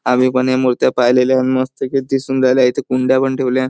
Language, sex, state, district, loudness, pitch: Marathi, male, Maharashtra, Chandrapur, -15 LUFS, 130 Hz